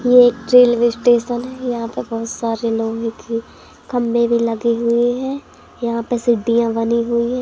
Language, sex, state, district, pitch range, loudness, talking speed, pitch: Hindi, female, Madhya Pradesh, Katni, 230-245 Hz, -17 LUFS, 185 wpm, 235 Hz